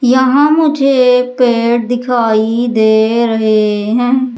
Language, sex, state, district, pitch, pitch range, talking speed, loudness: Hindi, female, Madhya Pradesh, Umaria, 240 Hz, 225-255 Hz, 95 wpm, -11 LUFS